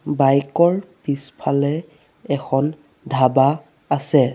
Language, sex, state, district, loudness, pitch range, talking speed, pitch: Assamese, male, Assam, Sonitpur, -20 LUFS, 135-155 Hz, 85 wpm, 145 Hz